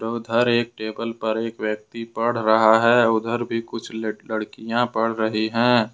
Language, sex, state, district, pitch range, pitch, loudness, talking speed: Hindi, male, Jharkhand, Ranchi, 110-120 Hz, 115 Hz, -22 LUFS, 160 wpm